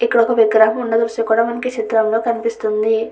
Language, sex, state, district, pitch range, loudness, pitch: Telugu, female, Andhra Pradesh, Chittoor, 220-235 Hz, -16 LUFS, 225 Hz